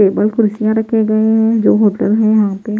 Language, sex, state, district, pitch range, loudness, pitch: Hindi, female, Bihar, Patna, 210-220 Hz, -13 LUFS, 215 Hz